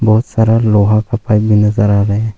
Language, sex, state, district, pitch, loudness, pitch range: Hindi, male, Arunachal Pradesh, Longding, 110 Hz, -12 LUFS, 105-110 Hz